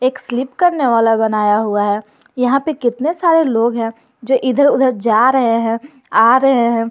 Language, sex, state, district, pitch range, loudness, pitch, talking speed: Hindi, male, Jharkhand, Garhwa, 230-265 Hz, -15 LUFS, 250 Hz, 190 wpm